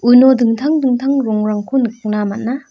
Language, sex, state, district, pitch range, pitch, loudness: Garo, female, Meghalaya, North Garo Hills, 215-265 Hz, 240 Hz, -15 LUFS